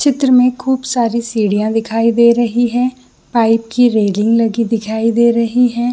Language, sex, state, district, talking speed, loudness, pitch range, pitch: Hindi, female, Chhattisgarh, Bilaspur, 170 wpm, -14 LUFS, 225-250 Hz, 235 Hz